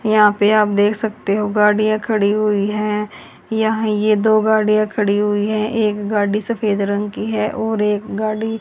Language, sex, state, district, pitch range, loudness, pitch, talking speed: Hindi, female, Haryana, Jhajjar, 210-215 Hz, -17 LUFS, 210 Hz, 180 wpm